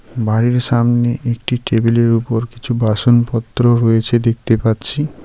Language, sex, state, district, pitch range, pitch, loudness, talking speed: Bengali, male, West Bengal, Darjeeling, 115-120 Hz, 120 Hz, -15 LUFS, 115 wpm